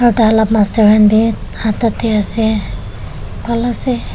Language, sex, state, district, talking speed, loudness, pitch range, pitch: Nagamese, female, Nagaland, Dimapur, 145 wpm, -13 LUFS, 215-235 Hz, 220 Hz